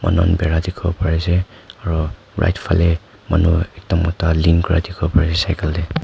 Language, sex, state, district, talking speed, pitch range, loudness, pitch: Nagamese, male, Nagaland, Kohima, 190 wpm, 85-95 Hz, -18 LUFS, 85 Hz